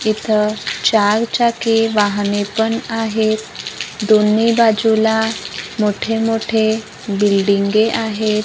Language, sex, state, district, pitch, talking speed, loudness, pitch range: Marathi, female, Maharashtra, Gondia, 220 Hz, 85 wpm, -16 LUFS, 210-225 Hz